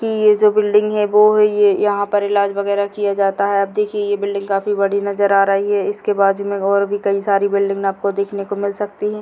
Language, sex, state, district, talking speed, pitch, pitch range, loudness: Hindi, female, Bihar, Sitamarhi, 200 wpm, 200 Hz, 200-210 Hz, -17 LUFS